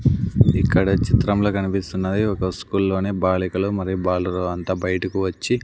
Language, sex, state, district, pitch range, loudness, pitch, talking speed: Telugu, male, Andhra Pradesh, Sri Satya Sai, 90-100 Hz, -21 LUFS, 95 Hz, 115 wpm